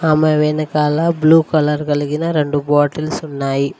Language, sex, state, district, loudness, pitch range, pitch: Telugu, female, Telangana, Mahabubabad, -16 LUFS, 145-155 Hz, 150 Hz